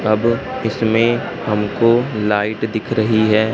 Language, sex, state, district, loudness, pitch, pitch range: Hindi, male, Madhya Pradesh, Katni, -17 LUFS, 110 Hz, 110-115 Hz